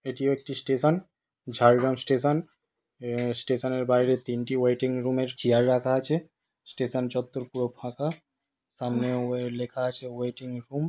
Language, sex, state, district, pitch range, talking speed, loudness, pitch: Bengali, male, West Bengal, Jhargram, 125-135 Hz, 140 wpm, -27 LUFS, 130 Hz